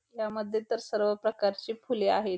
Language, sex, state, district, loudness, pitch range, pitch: Marathi, female, Maharashtra, Pune, -30 LUFS, 210-225 Hz, 220 Hz